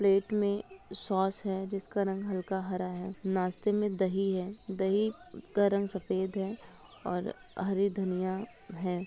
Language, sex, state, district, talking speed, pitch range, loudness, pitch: Hindi, female, Bihar, Gaya, 145 wpm, 190-200 Hz, -32 LUFS, 195 Hz